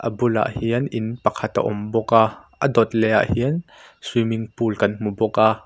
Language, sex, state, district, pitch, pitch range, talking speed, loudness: Mizo, male, Mizoram, Aizawl, 115 Hz, 110-115 Hz, 210 wpm, -21 LUFS